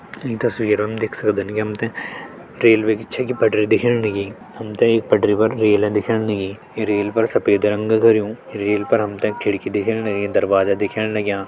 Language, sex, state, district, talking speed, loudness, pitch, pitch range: Hindi, male, Uttarakhand, Tehri Garhwal, 180 wpm, -19 LUFS, 110 Hz, 105-115 Hz